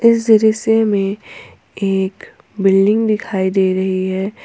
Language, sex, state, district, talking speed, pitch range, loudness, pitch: Hindi, female, Jharkhand, Ranchi, 120 wpm, 190-220 Hz, -15 LUFS, 195 Hz